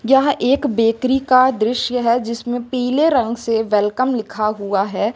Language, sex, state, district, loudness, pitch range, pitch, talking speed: Hindi, female, Uttar Pradesh, Lucknow, -17 LUFS, 220-255 Hz, 240 Hz, 165 wpm